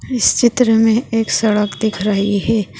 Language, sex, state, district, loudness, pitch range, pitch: Hindi, female, Maharashtra, Dhule, -15 LUFS, 210-230 Hz, 225 Hz